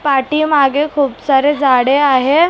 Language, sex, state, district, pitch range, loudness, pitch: Marathi, female, Maharashtra, Mumbai Suburban, 270-295 Hz, -13 LUFS, 280 Hz